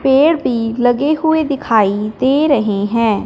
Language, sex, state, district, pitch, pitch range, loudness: Hindi, male, Punjab, Fazilka, 250 Hz, 220-290 Hz, -14 LUFS